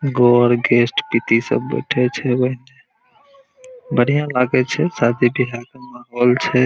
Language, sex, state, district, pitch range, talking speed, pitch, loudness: Maithili, male, Bihar, Araria, 120-140 Hz, 115 wpm, 125 Hz, -17 LUFS